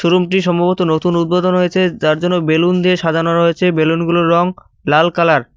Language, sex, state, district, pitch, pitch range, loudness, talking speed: Bengali, male, West Bengal, Cooch Behar, 175 Hz, 165-180 Hz, -14 LUFS, 170 wpm